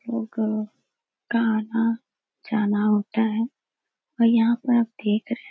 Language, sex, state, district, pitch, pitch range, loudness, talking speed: Hindi, female, Bihar, Darbhanga, 230 Hz, 215-235 Hz, -23 LUFS, 140 wpm